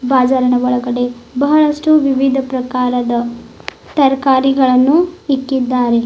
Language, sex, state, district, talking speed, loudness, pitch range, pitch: Kannada, female, Karnataka, Bidar, 70 wpm, -14 LUFS, 250-275 Hz, 260 Hz